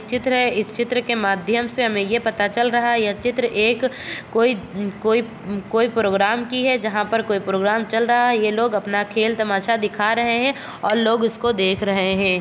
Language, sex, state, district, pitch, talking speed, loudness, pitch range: Hindi, female, Chhattisgarh, Bastar, 225 Hz, 210 wpm, -20 LUFS, 205-240 Hz